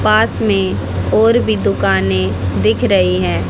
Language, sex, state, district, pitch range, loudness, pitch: Hindi, female, Haryana, Jhajjar, 95-100 Hz, -14 LUFS, 95 Hz